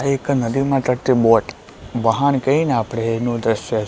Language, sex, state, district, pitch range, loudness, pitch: Gujarati, male, Gujarat, Gandhinagar, 115-135 Hz, -18 LUFS, 125 Hz